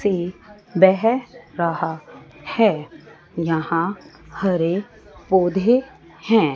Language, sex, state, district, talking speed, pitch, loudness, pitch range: Hindi, female, Chandigarh, Chandigarh, 75 wpm, 185 Hz, -20 LUFS, 165-210 Hz